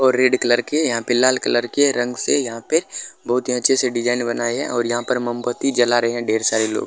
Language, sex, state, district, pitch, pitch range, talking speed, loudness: Maithili, male, Bihar, Madhepura, 120 Hz, 120-130 Hz, 245 wpm, -19 LUFS